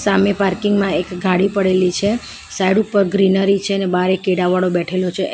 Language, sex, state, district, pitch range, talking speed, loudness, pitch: Gujarati, female, Gujarat, Valsad, 185-200 Hz, 190 wpm, -17 LUFS, 190 Hz